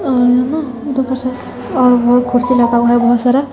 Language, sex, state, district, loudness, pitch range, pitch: Hindi, female, Bihar, West Champaran, -13 LUFS, 245-260 Hz, 250 Hz